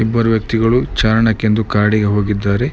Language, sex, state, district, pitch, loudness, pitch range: Kannada, male, Karnataka, Mysore, 110 Hz, -15 LUFS, 105-115 Hz